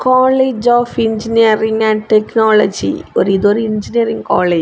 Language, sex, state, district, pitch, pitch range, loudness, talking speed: Tamil, female, Tamil Nadu, Kanyakumari, 220 Hz, 215-240 Hz, -13 LUFS, 145 wpm